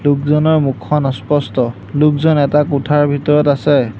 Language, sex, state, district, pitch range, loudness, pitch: Assamese, male, Assam, Hailakandi, 140-150 Hz, -14 LUFS, 145 Hz